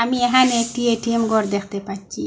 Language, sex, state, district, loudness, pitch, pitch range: Bengali, female, Assam, Hailakandi, -19 LUFS, 230 Hz, 200-240 Hz